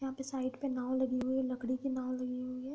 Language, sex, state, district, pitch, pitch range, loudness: Hindi, female, Bihar, Bhagalpur, 260 Hz, 255-265 Hz, -36 LUFS